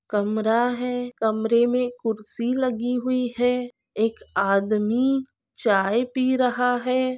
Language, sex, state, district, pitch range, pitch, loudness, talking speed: Hindi, female, Maharashtra, Aurangabad, 220-250 Hz, 245 Hz, -23 LUFS, 125 wpm